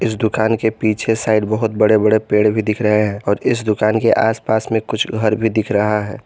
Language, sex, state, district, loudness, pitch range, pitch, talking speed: Hindi, male, Jharkhand, Garhwa, -16 LUFS, 105-110 Hz, 110 Hz, 230 wpm